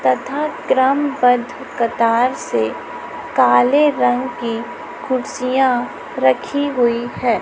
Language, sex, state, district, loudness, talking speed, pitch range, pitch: Hindi, female, Chhattisgarh, Raipur, -17 LUFS, 90 wpm, 235-265 Hz, 245 Hz